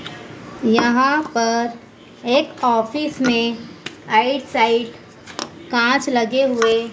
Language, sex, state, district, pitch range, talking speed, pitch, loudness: Hindi, female, Madhya Pradesh, Dhar, 230-270 Hz, 85 wpm, 235 Hz, -18 LUFS